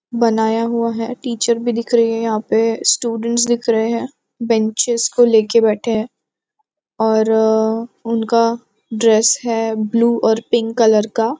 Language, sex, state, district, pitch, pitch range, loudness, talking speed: Hindi, female, Maharashtra, Nagpur, 230 Hz, 220-235 Hz, -16 LUFS, 145 wpm